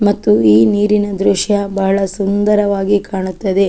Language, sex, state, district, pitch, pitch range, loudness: Kannada, female, Karnataka, Chamarajanagar, 200 Hz, 195-205 Hz, -14 LUFS